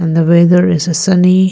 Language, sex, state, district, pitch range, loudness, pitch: English, female, Arunachal Pradesh, Lower Dibang Valley, 170-180 Hz, -10 LUFS, 175 Hz